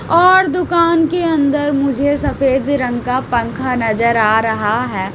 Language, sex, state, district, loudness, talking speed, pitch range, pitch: Hindi, female, Haryana, Rohtak, -15 LUFS, 150 wpm, 235-320 Hz, 270 Hz